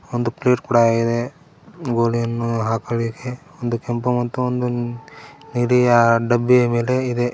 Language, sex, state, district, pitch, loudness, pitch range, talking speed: Kannada, male, Karnataka, Koppal, 120 Hz, -19 LUFS, 115-125 Hz, 115 wpm